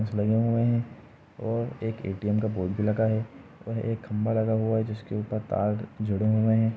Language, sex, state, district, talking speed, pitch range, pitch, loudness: Hindi, male, Uttar Pradesh, Jalaun, 195 wpm, 105-115 Hz, 110 Hz, -27 LUFS